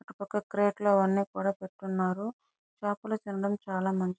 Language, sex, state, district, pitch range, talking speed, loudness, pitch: Telugu, male, Andhra Pradesh, Chittoor, 190-210 Hz, 170 wpm, -31 LUFS, 200 Hz